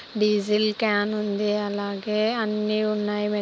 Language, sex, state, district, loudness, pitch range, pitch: Telugu, female, Andhra Pradesh, Anantapur, -24 LUFS, 210-215 Hz, 210 Hz